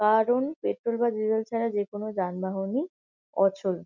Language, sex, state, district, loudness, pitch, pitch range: Bengali, female, West Bengal, Kolkata, -28 LUFS, 215 Hz, 195-235 Hz